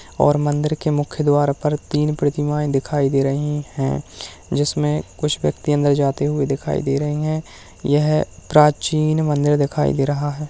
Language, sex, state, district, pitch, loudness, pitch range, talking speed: Hindi, male, Uttarakhand, Tehri Garhwal, 145 Hz, -19 LUFS, 140-150 Hz, 165 wpm